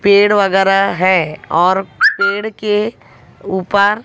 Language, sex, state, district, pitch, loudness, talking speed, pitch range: Hindi, female, Haryana, Jhajjar, 200 Hz, -14 LUFS, 105 wpm, 185-205 Hz